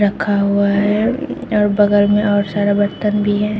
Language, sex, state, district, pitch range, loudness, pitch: Hindi, female, Bihar, Katihar, 205-210 Hz, -16 LUFS, 205 Hz